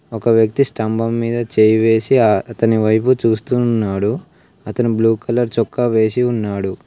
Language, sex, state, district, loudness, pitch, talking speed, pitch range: Telugu, male, Telangana, Komaram Bheem, -16 LUFS, 115 Hz, 130 wpm, 110-120 Hz